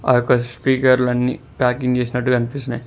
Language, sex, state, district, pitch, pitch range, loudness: Telugu, male, Telangana, Mahabubabad, 125 Hz, 125-130 Hz, -18 LUFS